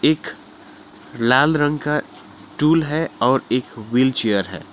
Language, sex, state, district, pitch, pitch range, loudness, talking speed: Hindi, male, West Bengal, Alipurduar, 130 Hz, 120-150 Hz, -19 LUFS, 125 wpm